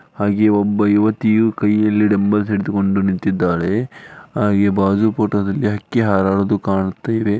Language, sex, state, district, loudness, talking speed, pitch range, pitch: Kannada, male, Karnataka, Dharwad, -17 LUFS, 120 wpm, 100-105 Hz, 105 Hz